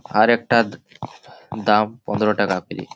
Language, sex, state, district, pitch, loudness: Bengali, male, West Bengal, Malda, 105 Hz, -19 LUFS